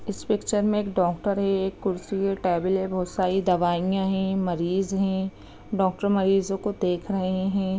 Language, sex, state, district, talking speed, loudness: Hindi, female, Bihar, Sitamarhi, 175 wpm, -25 LUFS